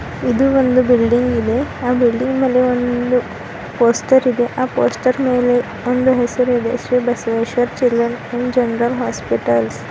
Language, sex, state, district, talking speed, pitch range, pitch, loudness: Kannada, female, Karnataka, Bidar, 135 wpm, 235-250 Hz, 245 Hz, -16 LUFS